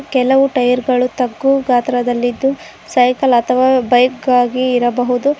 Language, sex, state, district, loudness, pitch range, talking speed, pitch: Kannada, female, Karnataka, Koppal, -14 LUFS, 245-265 Hz, 120 wpm, 250 Hz